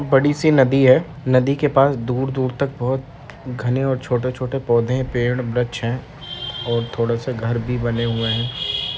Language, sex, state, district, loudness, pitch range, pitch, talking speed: Hindi, male, Uttar Pradesh, Deoria, -20 LUFS, 120-135 Hz, 130 Hz, 165 wpm